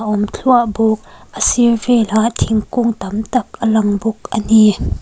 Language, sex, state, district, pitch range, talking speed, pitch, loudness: Mizo, female, Mizoram, Aizawl, 215-235 Hz, 165 wpm, 220 Hz, -15 LUFS